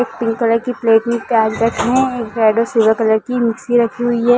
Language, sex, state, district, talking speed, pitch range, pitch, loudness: Hindi, female, Chhattisgarh, Balrampur, 275 wpm, 225-240 Hz, 230 Hz, -15 LUFS